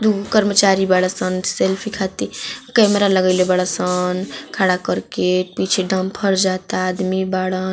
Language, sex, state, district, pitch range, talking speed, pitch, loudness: Bhojpuri, female, Uttar Pradesh, Ghazipur, 185-195 Hz, 115 wpm, 190 Hz, -18 LUFS